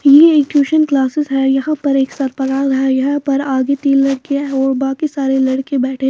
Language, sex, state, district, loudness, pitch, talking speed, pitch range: Hindi, female, Bihar, Patna, -14 LUFS, 275 Hz, 175 wpm, 270-285 Hz